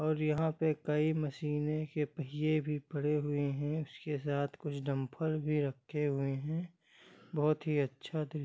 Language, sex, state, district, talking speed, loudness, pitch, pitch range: Hindi, male, Jharkhand, Sahebganj, 170 wpm, -35 LUFS, 150 Hz, 145-155 Hz